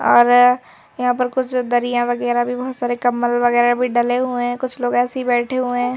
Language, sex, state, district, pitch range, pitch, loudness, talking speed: Hindi, female, Madhya Pradesh, Bhopal, 240-250 Hz, 245 Hz, -18 LUFS, 220 wpm